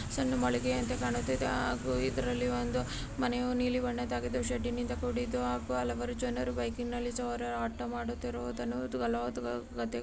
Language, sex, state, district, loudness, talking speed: Kannada, female, Karnataka, Gulbarga, -34 LUFS, 130 wpm